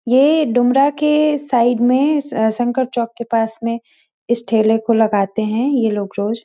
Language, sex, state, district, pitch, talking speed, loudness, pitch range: Hindi, female, Bihar, Sitamarhi, 235 Hz, 160 wpm, -16 LUFS, 220-265 Hz